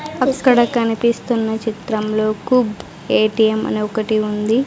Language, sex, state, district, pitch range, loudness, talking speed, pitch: Telugu, female, Andhra Pradesh, Sri Satya Sai, 215-240 Hz, -17 LUFS, 100 wpm, 220 Hz